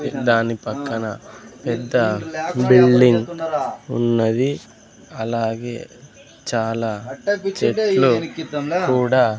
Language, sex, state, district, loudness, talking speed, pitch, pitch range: Telugu, male, Andhra Pradesh, Sri Satya Sai, -19 LUFS, 60 wpm, 125 Hz, 115-145 Hz